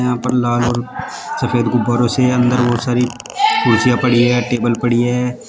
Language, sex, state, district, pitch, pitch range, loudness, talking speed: Hindi, male, Uttar Pradesh, Shamli, 125 Hz, 120-125 Hz, -15 LUFS, 175 wpm